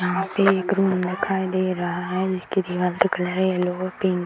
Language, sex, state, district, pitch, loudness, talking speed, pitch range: Hindi, female, Bihar, Darbhanga, 185 Hz, -23 LUFS, 225 wpm, 180-190 Hz